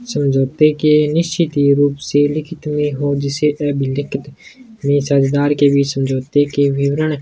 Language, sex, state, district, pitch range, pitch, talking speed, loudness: Hindi, male, Rajasthan, Churu, 140-150 Hz, 145 Hz, 115 wpm, -16 LUFS